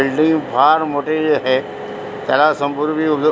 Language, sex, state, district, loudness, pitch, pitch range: Marathi, female, Maharashtra, Aurangabad, -16 LUFS, 150 Hz, 140-155 Hz